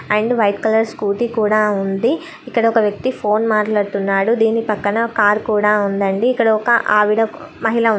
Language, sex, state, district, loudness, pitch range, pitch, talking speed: Telugu, female, Andhra Pradesh, Guntur, -16 LUFS, 210-230 Hz, 215 Hz, 160 wpm